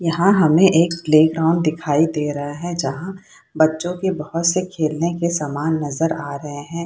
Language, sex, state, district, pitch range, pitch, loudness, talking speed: Hindi, female, Bihar, Saharsa, 150-170 Hz, 165 Hz, -19 LUFS, 175 wpm